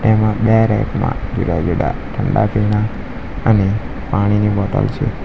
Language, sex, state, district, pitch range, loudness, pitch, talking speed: Gujarati, male, Gujarat, Valsad, 100-110 Hz, -17 LUFS, 105 Hz, 125 wpm